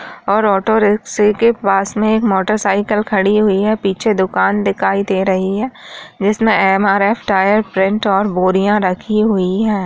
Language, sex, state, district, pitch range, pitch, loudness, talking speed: Hindi, female, Bihar, Jamui, 195-215 Hz, 205 Hz, -14 LUFS, 165 wpm